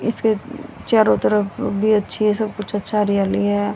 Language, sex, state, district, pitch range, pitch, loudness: Hindi, female, Haryana, Rohtak, 205-215 Hz, 210 Hz, -19 LUFS